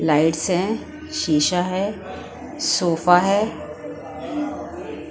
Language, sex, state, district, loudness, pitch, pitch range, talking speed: Hindi, female, Punjab, Pathankot, -21 LUFS, 190 Hz, 175-250 Hz, 70 wpm